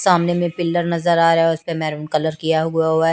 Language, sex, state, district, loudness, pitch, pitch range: Hindi, female, Chandigarh, Chandigarh, -18 LUFS, 165 Hz, 160-170 Hz